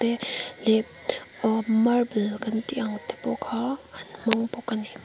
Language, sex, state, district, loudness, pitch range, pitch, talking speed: Mizo, female, Mizoram, Aizawl, -27 LUFS, 220-240 Hz, 225 Hz, 180 wpm